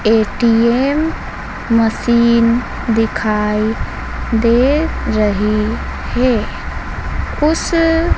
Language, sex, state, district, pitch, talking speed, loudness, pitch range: Hindi, female, Madhya Pradesh, Dhar, 230 Hz, 50 wpm, -15 LUFS, 215-255 Hz